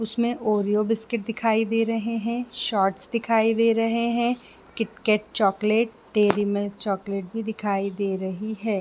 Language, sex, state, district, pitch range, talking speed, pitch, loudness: Hindi, female, Chhattisgarh, Bilaspur, 205-225 Hz, 150 wpm, 220 Hz, -24 LUFS